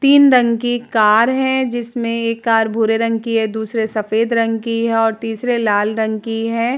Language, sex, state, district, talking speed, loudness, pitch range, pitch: Hindi, female, Uttar Pradesh, Jalaun, 195 wpm, -16 LUFS, 225-235 Hz, 230 Hz